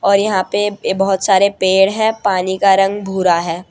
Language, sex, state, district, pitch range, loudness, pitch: Hindi, female, Gujarat, Valsad, 190-200 Hz, -14 LUFS, 195 Hz